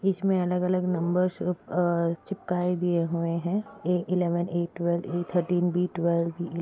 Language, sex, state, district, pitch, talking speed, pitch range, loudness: Hindi, female, Chhattisgarh, Rajnandgaon, 175 Hz, 165 wpm, 170-180 Hz, -27 LUFS